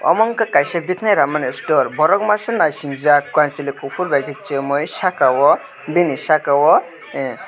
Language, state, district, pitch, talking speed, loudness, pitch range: Kokborok, Tripura, West Tripura, 155 Hz, 150 wpm, -17 LUFS, 145-195 Hz